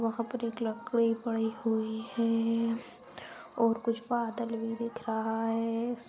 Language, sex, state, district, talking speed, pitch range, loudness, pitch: Hindi, female, Bihar, East Champaran, 175 wpm, 225-235 Hz, -32 LUFS, 230 Hz